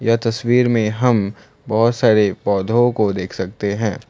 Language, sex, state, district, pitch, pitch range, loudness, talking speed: Hindi, male, Assam, Kamrup Metropolitan, 110 Hz, 100-115 Hz, -17 LUFS, 145 wpm